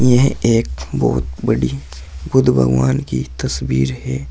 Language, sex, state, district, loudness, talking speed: Hindi, male, Uttar Pradesh, Saharanpur, -17 LUFS, 125 wpm